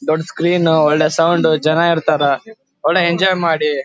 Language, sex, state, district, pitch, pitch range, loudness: Kannada, male, Karnataka, Dharwad, 165 Hz, 155-170 Hz, -15 LUFS